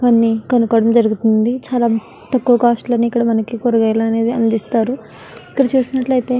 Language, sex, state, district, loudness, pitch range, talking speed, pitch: Telugu, female, Andhra Pradesh, Guntur, -16 LUFS, 225-245 Hz, 150 wpm, 235 Hz